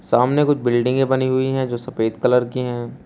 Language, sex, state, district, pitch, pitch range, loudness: Hindi, male, Uttar Pradesh, Shamli, 125 Hz, 120-130 Hz, -19 LUFS